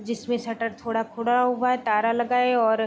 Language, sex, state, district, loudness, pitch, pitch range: Hindi, female, Bihar, Vaishali, -24 LUFS, 235 Hz, 225-245 Hz